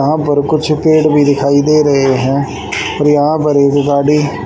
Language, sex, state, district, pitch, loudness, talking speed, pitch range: Hindi, male, Haryana, Rohtak, 145 Hz, -12 LUFS, 190 wpm, 140-150 Hz